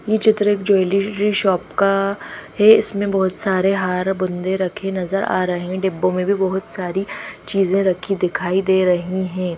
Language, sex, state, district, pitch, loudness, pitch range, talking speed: Hindi, female, Haryana, Rohtak, 190 Hz, -18 LUFS, 185-200 Hz, 180 wpm